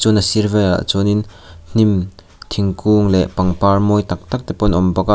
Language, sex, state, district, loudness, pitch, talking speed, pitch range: Mizo, male, Mizoram, Aizawl, -16 LUFS, 100 Hz, 200 wpm, 95-105 Hz